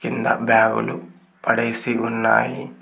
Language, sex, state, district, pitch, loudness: Telugu, male, Telangana, Mahabubabad, 115 Hz, -20 LUFS